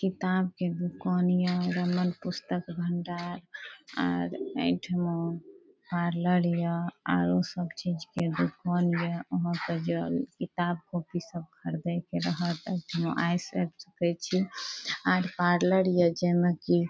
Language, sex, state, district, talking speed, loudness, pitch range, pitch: Maithili, female, Bihar, Saharsa, 120 wpm, -30 LUFS, 170-180 Hz, 175 Hz